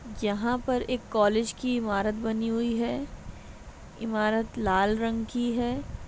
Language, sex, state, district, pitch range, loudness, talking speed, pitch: Hindi, female, Bihar, Madhepura, 215-240 Hz, -28 LUFS, 140 wpm, 225 Hz